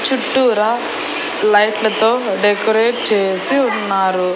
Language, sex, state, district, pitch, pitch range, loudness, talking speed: Telugu, female, Andhra Pradesh, Annamaya, 215 Hz, 200-240 Hz, -15 LUFS, 70 wpm